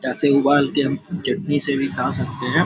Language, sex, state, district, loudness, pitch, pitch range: Hindi, male, Uttar Pradesh, Gorakhpur, -18 LUFS, 140 Hz, 140-145 Hz